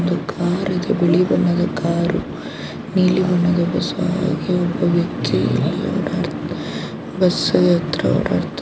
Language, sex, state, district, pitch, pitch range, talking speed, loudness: Kannada, female, Karnataka, Chamarajanagar, 175 Hz, 175-180 Hz, 120 wpm, -19 LUFS